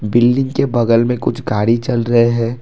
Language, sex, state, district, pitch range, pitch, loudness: Hindi, male, Assam, Kamrup Metropolitan, 115-120 Hz, 120 Hz, -15 LUFS